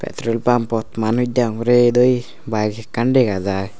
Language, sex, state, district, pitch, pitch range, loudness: Chakma, male, Tripura, Unakoti, 115 Hz, 110-120 Hz, -18 LUFS